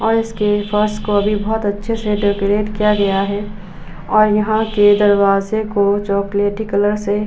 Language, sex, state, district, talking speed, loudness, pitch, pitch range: Hindi, female, Uttar Pradesh, Budaun, 175 wpm, -16 LUFS, 205 Hz, 200-210 Hz